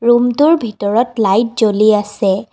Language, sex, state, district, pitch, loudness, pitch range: Assamese, female, Assam, Kamrup Metropolitan, 225 Hz, -13 LUFS, 205-240 Hz